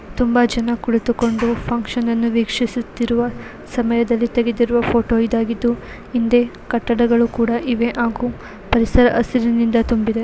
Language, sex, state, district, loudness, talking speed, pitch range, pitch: Kannada, female, Karnataka, Belgaum, -18 LUFS, 95 wpm, 230-240 Hz, 235 Hz